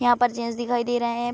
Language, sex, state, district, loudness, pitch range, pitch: Hindi, female, Bihar, Araria, -24 LUFS, 235-245 Hz, 240 Hz